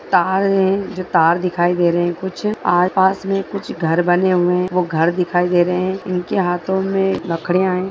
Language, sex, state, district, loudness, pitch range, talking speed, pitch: Hindi, female, Bihar, Begusarai, -17 LUFS, 175-190 Hz, 205 wpm, 180 Hz